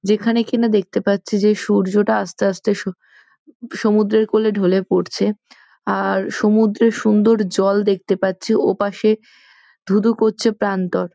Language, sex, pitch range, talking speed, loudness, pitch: Bengali, female, 195-220 Hz, 130 wpm, -18 LUFS, 210 Hz